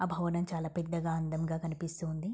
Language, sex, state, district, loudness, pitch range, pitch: Telugu, female, Andhra Pradesh, Guntur, -35 LUFS, 160-170 Hz, 165 Hz